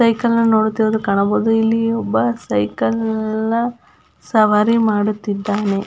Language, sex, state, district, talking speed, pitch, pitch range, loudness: Kannada, female, Karnataka, Belgaum, 100 wpm, 220 Hz, 205-225 Hz, -17 LUFS